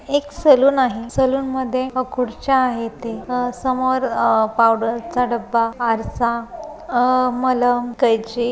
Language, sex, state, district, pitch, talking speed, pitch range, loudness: Marathi, female, Maharashtra, Pune, 250 Hz, 135 wpm, 235-260 Hz, -19 LUFS